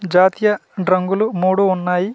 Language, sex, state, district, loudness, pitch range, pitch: Telugu, male, Andhra Pradesh, Manyam, -17 LUFS, 185-200 Hz, 185 Hz